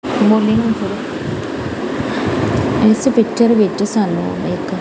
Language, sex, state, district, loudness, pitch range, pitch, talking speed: Punjabi, female, Punjab, Kapurthala, -16 LUFS, 215-230 Hz, 220 Hz, 60 wpm